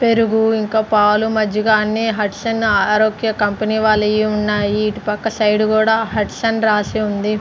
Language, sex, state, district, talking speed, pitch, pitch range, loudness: Telugu, female, Andhra Pradesh, Sri Satya Sai, 155 wpm, 215 Hz, 210-220 Hz, -16 LUFS